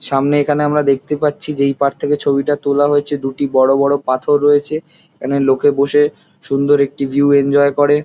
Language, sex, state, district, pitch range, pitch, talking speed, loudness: Bengali, male, West Bengal, Jalpaiguri, 140-145 Hz, 145 Hz, 180 wpm, -15 LUFS